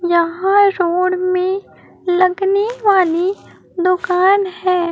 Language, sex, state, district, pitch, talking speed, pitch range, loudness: Hindi, female, Chhattisgarh, Raipur, 365 Hz, 85 wpm, 360-390 Hz, -16 LUFS